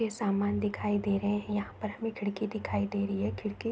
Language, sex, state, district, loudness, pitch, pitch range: Hindi, female, Uttar Pradesh, Gorakhpur, -32 LUFS, 205 Hz, 200-215 Hz